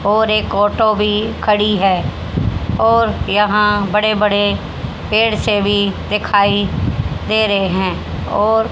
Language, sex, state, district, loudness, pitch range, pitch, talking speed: Hindi, female, Haryana, Rohtak, -15 LUFS, 200-215 Hz, 210 Hz, 125 wpm